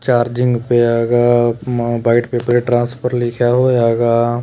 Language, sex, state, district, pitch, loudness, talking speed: Punjabi, male, Punjab, Kapurthala, 120 Hz, -15 LUFS, 120 wpm